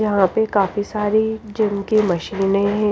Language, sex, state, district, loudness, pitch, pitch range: Hindi, female, Himachal Pradesh, Shimla, -19 LUFS, 210 Hz, 200-215 Hz